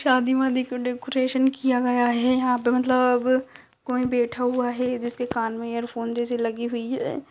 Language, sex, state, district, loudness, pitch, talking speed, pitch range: Hindi, female, Uttar Pradesh, Ghazipur, -24 LUFS, 250 Hz, 180 wpm, 240-255 Hz